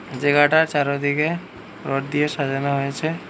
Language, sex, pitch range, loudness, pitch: Bengali, male, 140-155 Hz, -21 LUFS, 145 Hz